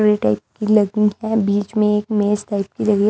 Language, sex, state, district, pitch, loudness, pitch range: Hindi, female, Delhi, New Delhi, 210 Hz, -18 LUFS, 205-215 Hz